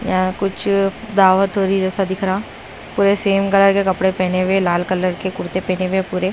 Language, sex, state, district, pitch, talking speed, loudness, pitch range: Hindi, female, Punjab, Kapurthala, 190 Hz, 210 wpm, -17 LUFS, 185-195 Hz